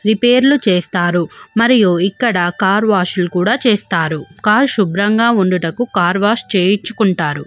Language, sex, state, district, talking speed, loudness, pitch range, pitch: Telugu, female, Andhra Pradesh, Visakhapatnam, 130 wpm, -14 LUFS, 180-230 Hz, 200 Hz